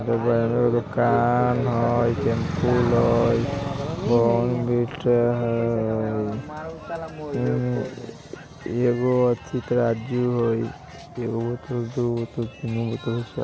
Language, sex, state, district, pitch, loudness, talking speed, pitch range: Bajjika, male, Bihar, Vaishali, 120 Hz, -23 LUFS, 100 wpm, 115-125 Hz